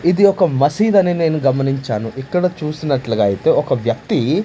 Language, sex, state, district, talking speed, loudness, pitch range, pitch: Telugu, male, Andhra Pradesh, Manyam, 150 wpm, -16 LUFS, 135-180 Hz, 150 Hz